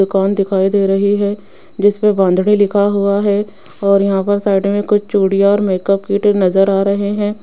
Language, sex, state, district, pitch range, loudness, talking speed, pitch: Hindi, female, Rajasthan, Jaipur, 195-205 Hz, -14 LUFS, 200 wpm, 200 Hz